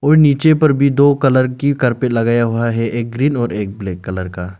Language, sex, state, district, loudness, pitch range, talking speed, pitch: Hindi, male, Arunachal Pradesh, Lower Dibang Valley, -15 LUFS, 115-140 Hz, 220 wpm, 120 Hz